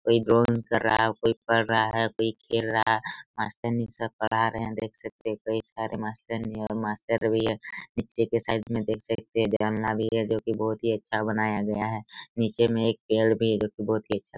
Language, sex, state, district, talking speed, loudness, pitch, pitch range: Hindi, male, Chhattisgarh, Raigarh, 220 wpm, -27 LUFS, 110 Hz, 110-115 Hz